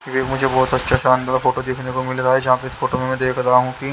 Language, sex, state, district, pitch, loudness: Hindi, male, Haryana, Jhajjar, 130 Hz, -18 LUFS